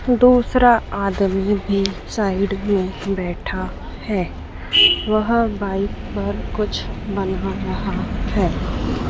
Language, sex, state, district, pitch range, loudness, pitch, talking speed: Hindi, female, Madhya Pradesh, Dhar, 185-215 Hz, -19 LUFS, 195 Hz, 90 wpm